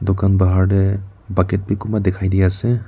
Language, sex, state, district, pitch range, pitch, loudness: Nagamese, male, Nagaland, Kohima, 95-100 Hz, 95 Hz, -18 LUFS